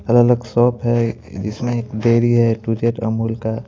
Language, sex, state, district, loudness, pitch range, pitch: Hindi, male, Madhya Pradesh, Bhopal, -18 LUFS, 115-120 Hz, 115 Hz